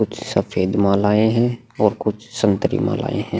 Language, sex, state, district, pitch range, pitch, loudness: Hindi, male, Chhattisgarh, Kabirdham, 100-115 Hz, 105 Hz, -19 LUFS